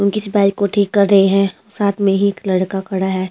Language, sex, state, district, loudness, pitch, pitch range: Hindi, female, Delhi, New Delhi, -16 LUFS, 200 Hz, 195-200 Hz